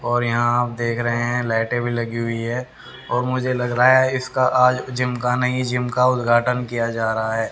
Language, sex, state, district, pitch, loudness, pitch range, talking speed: Hindi, male, Haryana, Rohtak, 120 Hz, -20 LUFS, 120-125 Hz, 225 wpm